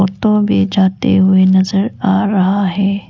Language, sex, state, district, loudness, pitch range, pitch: Hindi, female, Arunachal Pradesh, Lower Dibang Valley, -13 LUFS, 190-200 Hz, 195 Hz